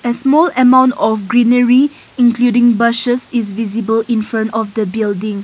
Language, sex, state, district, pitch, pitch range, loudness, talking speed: English, female, Nagaland, Kohima, 235 Hz, 220-245 Hz, -13 LUFS, 145 wpm